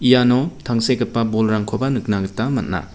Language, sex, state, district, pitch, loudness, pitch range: Garo, male, Meghalaya, West Garo Hills, 115 Hz, -19 LUFS, 110-130 Hz